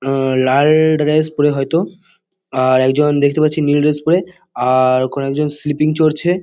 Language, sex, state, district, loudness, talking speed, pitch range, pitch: Bengali, male, West Bengal, Kolkata, -15 LUFS, 175 wpm, 135-155 Hz, 150 Hz